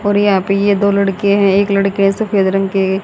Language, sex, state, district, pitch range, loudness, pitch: Hindi, female, Haryana, Charkhi Dadri, 195-200 Hz, -13 LUFS, 200 Hz